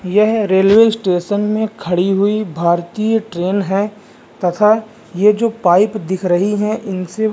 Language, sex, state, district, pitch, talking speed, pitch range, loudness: Hindi, male, Bihar, Vaishali, 205 Hz, 145 wpm, 185-215 Hz, -15 LUFS